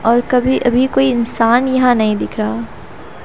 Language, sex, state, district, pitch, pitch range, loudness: Hindi, female, Haryana, Rohtak, 245 Hz, 230-255 Hz, -14 LUFS